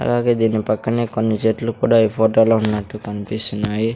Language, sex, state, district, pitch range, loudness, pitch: Telugu, male, Andhra Pradesh, Sri Satya Sai, 105-115 Hz, -18 LUFS, 110 Hz